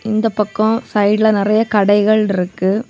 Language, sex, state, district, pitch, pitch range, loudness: Tamil, female, Tamil Nadu, Kanyakumari, 215 Hz, 205-220 Hz, -15 LUFS